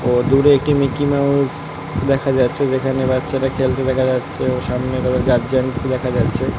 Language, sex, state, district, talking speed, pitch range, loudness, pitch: Bengali, male, West Bengal, North 24 Parganas, 135 wpm, 125-135 Hz, -17 LUFS, 130 Hz